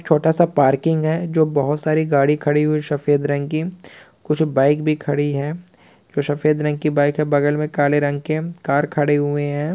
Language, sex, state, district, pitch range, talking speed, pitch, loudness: Hindi, male, Uttar Pradesh, Hamirpur, 145-155 Hz, 195 wpm, 150 Hz, -19 LUFS